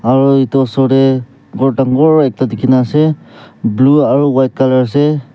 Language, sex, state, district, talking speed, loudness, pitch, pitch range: Nagamese, male, Nagaland, Kohima, 170 wpm, -12 LUFS, 135 Hz, 130-140 Hz